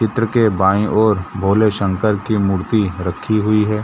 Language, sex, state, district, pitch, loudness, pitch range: Hindi, male, Jharkhand, Jamtara, 105 Hz, -16 LUFS, 95-110 Hz